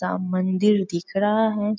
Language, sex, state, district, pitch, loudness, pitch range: Hindi, female, Bihar, Araria, 200 Hz, -22 LUFS, 185-210 Hz